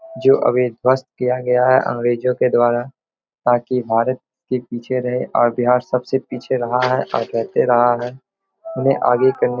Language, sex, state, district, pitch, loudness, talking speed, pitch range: Hindi, male, Bihar, Bhagalpur, 125 Hz, -18 LUFS, 175 wpm, 120-130 Hz